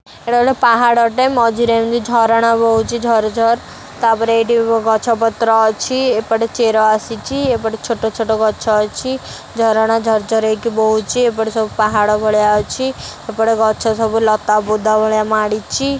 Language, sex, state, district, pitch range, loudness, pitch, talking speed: Odia, female, Odisha, Khordha, 220-235 Hz, -15 LUFS, 225 Hz, 150 wpm